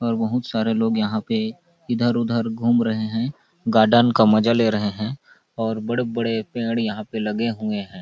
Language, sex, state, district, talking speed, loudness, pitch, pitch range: Hindi, male, Chhattisgarh, Balrampur, 185 wpm, -21 LUFS, 115 Hz, 110-120 Hz